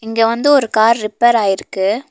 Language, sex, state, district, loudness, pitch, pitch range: Tamil, female, Tamil Nadu, Nilgiris, -14 LUFS, 225 Hz, 215-235 Hz